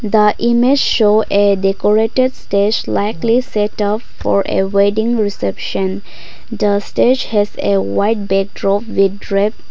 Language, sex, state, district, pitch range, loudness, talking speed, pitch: English, female, Nagaland, Kohima, 200-220 Hz, -15 LUFS, 130 wpm, 205 Hz